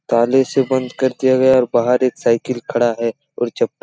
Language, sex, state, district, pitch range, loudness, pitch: Hindi, male, Chhattisgarh, Raigarh, 120-130 Hz, -17 LUFS, 125 Hz